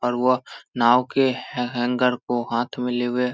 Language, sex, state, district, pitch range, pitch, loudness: Hindi, male, Bihar, Samastipur, 120-125 Hz, 125 Hz, -22 LUFS